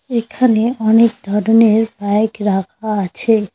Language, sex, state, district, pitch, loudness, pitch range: Bengali, female, West Bengal, Cooch Behar, 220 Hz, -15 LUFS, 205-230 Hz